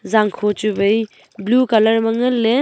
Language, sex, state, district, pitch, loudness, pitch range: Wancho, female, Arunachal Pradesh, Longding, 220 Hz, -16 LUFS, 210-230 Hz